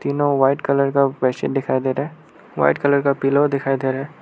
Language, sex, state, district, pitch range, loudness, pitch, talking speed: Hindi, male, Arunachal Pradesh, Lower Dibang Valley, 135-140 Hz, -19 LUFS, 140 Hz, 225 wpm